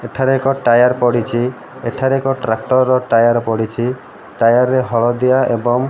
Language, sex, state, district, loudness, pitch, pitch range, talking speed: Odia, male, Odisha, Malkangiri, -15 LUFS, 120 Hz, 115-130 Hz, 150 wpm